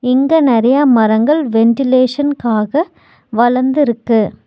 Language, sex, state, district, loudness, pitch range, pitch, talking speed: Tamil, female, Tamil Nadu, Nilgiris, -13 LUFS, 230-285 Hz, 255 Hz, 65 wpm